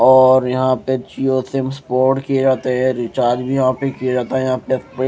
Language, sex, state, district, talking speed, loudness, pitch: Hindi, male, Odisha, Malkangiri, 225 wpm, -17 LUFS, 130 Hz